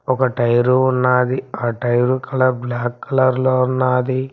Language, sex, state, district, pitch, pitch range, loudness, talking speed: Telugu, male, Telangana, Mahabubabad, 130 Hz, 120-130 Hz, -17 LUFS, 125 wpm